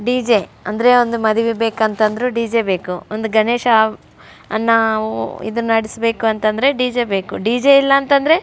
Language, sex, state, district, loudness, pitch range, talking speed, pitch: Kannada, female, Karnataka, Raichur, -16 LUFS, 220-245 Hz, 130 wpm, 225 Hz